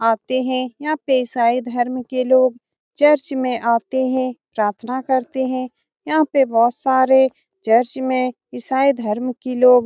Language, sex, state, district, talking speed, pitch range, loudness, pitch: Hindi, female, Bihar, Saran, 160 wpm, 245-265 Hz, -18 LUFS, 255 Hz